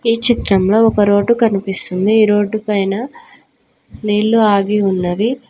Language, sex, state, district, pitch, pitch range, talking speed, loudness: Telugu, female, Telangana, Mahabubabad, 210 Hz, 200-230 Hz, 120 wpm, -14 LUFS